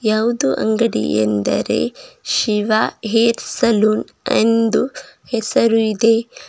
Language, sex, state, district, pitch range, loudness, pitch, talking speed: Kannada, female, Karnataka, Bidar, 215-230 Hz, -17 LUFS, 225 Hz, 85 wpm